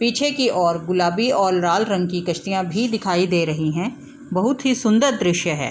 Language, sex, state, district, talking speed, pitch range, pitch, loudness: Hindi, female, Bihar, East Champaran, 200 wpm, 175-235 Hz, 185 Hz, -20 LUFS